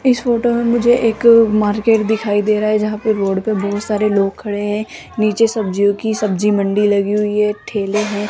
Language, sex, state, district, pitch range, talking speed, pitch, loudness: Hindi, female, Rajasthan, Jaipur, 205-220 Hz, 210 wpm, 210 Hz, -16 LUFS